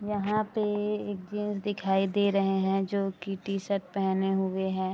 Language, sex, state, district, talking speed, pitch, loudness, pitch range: Hindi, female, Bihar, Araria, 170 wpm, 195 Hz, -29 LUFS, 190-205 Hz